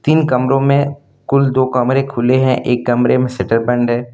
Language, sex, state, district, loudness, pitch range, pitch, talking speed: Hindi, male, Jharkhand, Deoghar, -15 LUFS, 120-135 Hz, 130 Hz, 205 wpm